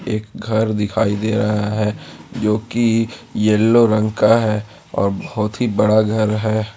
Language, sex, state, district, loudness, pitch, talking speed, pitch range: Hindi, male, Jharkhand, Ranchi, -18 LUFS, 110 Hz, 150 wpm, 105-110 Hz